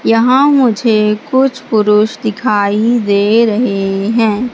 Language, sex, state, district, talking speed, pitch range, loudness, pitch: Hindi, female, Madhya Pradesh, Katni, 105 wpm, 210-245 Hz, -12 LUFS, 220 Hz